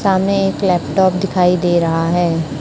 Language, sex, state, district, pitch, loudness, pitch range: Hindi, male, Chhattisgarh, Raipur, 180 Hz, -15 LUFS, 170-190 Hz